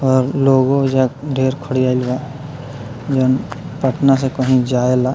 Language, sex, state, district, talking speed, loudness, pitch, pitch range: Bhojpuri, male, Bihar, Muzaffarpur, 130 wpm, -16 LUFS, 130 Hz, 130-135 Hz